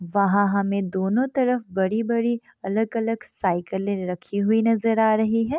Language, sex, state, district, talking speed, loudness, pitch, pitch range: Hindi, female, Bihar, East Champaran, 140 wpm, -23 LUFS, 215 Hz, 195-230 Hz